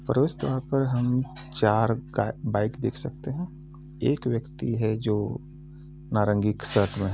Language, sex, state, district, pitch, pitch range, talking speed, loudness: Hindi, male, Uttar Pradesh, Muzaffarnagar, 125 Hz, 110-145 Hz, 145 wpm, -27 LUFS